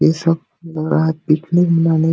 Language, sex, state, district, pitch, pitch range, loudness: Hindi, male, Jharkhand, Sahebganj, 165 Hz, 160-165 Hz, -17 LUFS